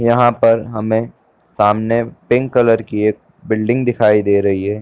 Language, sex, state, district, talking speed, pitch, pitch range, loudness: Hindi, male, Chhattisgarh, Bilaspur, 160 wpm, 115 Hz, 105-120 Hz, -15 LUFS